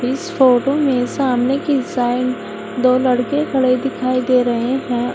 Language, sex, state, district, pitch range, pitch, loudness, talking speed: Hindi, female, Uttar Pradesh, Shamli, 245-270 Hz, 255 Hz, -17 LUFS, 150 wpm